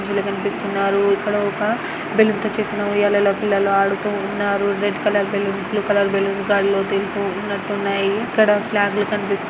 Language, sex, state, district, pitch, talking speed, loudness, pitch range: Telugu, female, Andhra Pradesh, Anantapur, 205 Hz, 140 wpm, -19 LUFS, 200-210 Hz